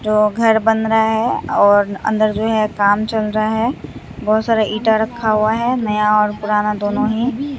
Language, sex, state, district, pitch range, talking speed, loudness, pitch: Hindi, female, Bihar, Katihar, 210-225 Hz, 190 wpm, -16 LUFS, 220 Hz